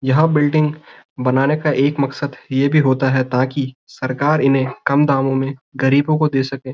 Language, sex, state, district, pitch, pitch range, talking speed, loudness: Hindi, male, Uttarakhand, Uttarkashi, 135 Hz, 130-145 Hz, 180 wpm, -17 LUFS